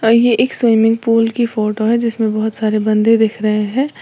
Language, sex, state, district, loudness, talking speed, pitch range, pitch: Hindi, female, Uttar Pradesh, Lalitpur, -14 LUFS, 210 wpm, 215-230 Hz, 225 Hz